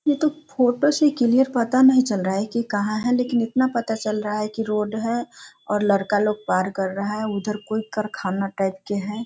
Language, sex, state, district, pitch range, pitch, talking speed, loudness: Hindi, female, Bihar, Sitamarhi, 205-245 Hz, 215 Hz, 225 wpm, -22 LUFS